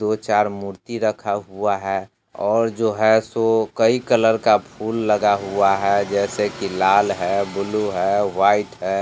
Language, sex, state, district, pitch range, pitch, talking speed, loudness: Hindi, male, Bihar, Sitamarhi, 100-110 Hz, 105 Hz, 165 wpm, -19 LUFS